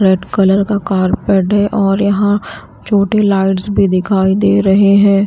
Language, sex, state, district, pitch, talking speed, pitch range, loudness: Hindi, female, Bihar, Katihar, 200 Hz, 160 wpm, 195-205 Hz, -12 LUFS